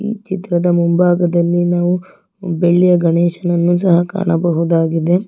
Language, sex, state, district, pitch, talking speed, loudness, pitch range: Kannada, female, Karnataka, Bangalore, 175 Hz, 90 wpm, -15 LUFS, 170-180 Hz